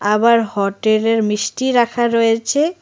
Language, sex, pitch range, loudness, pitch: Bengali, female, 215-240 Hz, -16 LUFS, 225 Hz